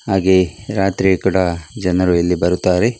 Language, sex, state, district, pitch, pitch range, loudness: Kannada, male, Karnataka, Dakshina Kannada, 95 Hz, 90-95 Hz, -16 LUFS